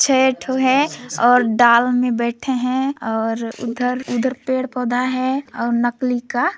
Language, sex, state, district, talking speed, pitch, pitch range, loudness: Hindi, female, Chhattisgarh, Sarguja, 155 wpm, 250 Hz, 235-260 Hz, -18 LUFS